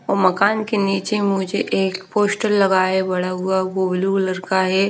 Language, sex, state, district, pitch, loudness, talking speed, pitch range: Hindi, female, Haryana, Rohtak, 190 Hz, -19 LUFS, 160 wpm, 185-200 Hz